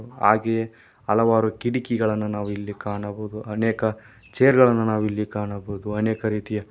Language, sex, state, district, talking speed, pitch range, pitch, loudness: Kannada, male, Karnataka, Koppal, 125 wpm, 105-115 Hz, 110 Hz, -23 LUFS